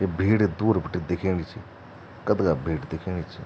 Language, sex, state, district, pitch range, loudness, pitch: Garhwali, male, Uttarakhand, Tehri Garhwal, 90-110 Hz, -25 LUFS, 95 Hz